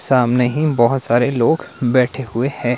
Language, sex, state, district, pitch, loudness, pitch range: Hindi, male, Himachal Pradesh, Shimla, 125 Hz, -17 LUFS, 120-135 Hz